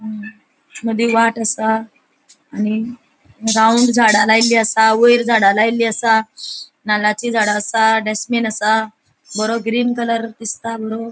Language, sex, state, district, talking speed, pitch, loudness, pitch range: Konkani, female, Goa, North and South Goa, 125 wpm, 225 Hz, -15 LUFS, 220-230 Hz